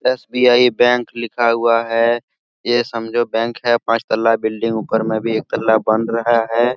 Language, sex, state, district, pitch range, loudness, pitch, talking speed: Hindi, male, Jharkhand, Sahebganj, 115-120 Hz, -17 LUFS, 115 Hz, 175 wpm